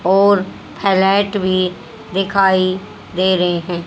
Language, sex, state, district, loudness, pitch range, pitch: Hindi, female, Haryana, Jhajjar, -16 LUFS, 185-195 Hz, 190 Hz